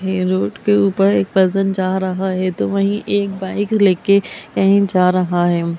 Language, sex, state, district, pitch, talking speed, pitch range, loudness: Hindi, female, Bihar, Darbhanga, 190 Hz, 185 wpm, 180-195 Hz, -16 LUFS